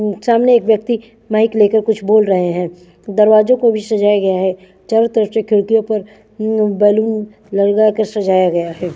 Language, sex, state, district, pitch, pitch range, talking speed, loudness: Hindi, female, Chandigarh, Chandigarh, 215 Hz, 200-220 Hz, 185 wpm, -14 LUFS